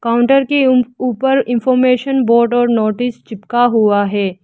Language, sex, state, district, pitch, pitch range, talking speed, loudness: Hindi, female, Arunachal Pradesh, Lower Dibang Valley, 245 Hz, 225-255 Hz, 150 wpm, -14 LUFS